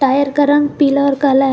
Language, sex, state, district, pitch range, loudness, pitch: Hindi, female, Jharkhand, Garhwa, 275-285 Hz, -13 LUFS, 280 Hz